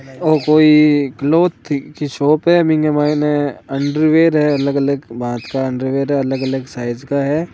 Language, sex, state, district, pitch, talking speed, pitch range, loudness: Hindi, male, Rajasthan, Nagaur, 145 Hz, 150 wpm, 135-150 Hz, -15 LUFS